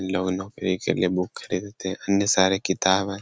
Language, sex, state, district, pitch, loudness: Hindi, male, Jharkhand, Sahebganj, 95 Hz, -24 LUFS